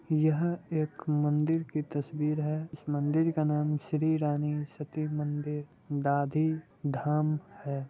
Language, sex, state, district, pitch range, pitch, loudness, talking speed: Hindi, male, Bihar, Muzaffarpur, 150-155 Hz, 150 Hz, -31 LUFS, 130 wpm